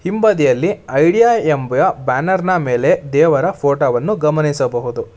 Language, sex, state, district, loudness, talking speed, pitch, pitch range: Kannada, male, Karnataka, Bangalore, -15 LUFS, 115 wpm, 155 Hz, 135-190 Hz